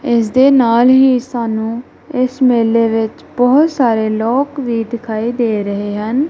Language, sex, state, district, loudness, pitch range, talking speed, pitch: Punjabi, female, Punjab, Kapurthala, -14 LUFS, 225-260 Hz, 150 wpm, 235 Hz